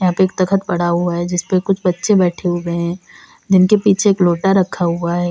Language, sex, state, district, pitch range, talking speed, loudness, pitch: Hindi, female, Uttar Pradesh, Lalitpur, 175-195 Hz, 225 wpm, -16 LUFS, 180 Hz